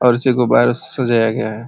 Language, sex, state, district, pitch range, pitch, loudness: Hindi, male, Uttar Pradesh, Ghazipur, 110-125 Hz, 115 Hz, -15 LUFS